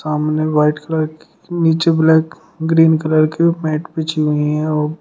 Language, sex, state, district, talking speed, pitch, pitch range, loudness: Hindi, male, Uttar Pradesh, Shamli, 180 wpm, 155 Hz, 155-160 Hz, -16 LUFS